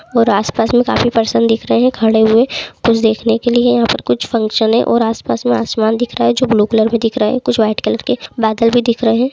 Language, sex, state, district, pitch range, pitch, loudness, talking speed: Hindi, male, West Bengal, Kolkata, 220-240 Hz, 225 Hz, -14 LUFS, 270 wpm